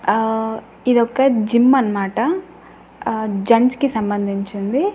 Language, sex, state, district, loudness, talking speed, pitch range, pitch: Telugu, female, Andhra Pradesh, Annamaya, -18 LUFS, 110 wpm, 210-255 Hz, 225 Hz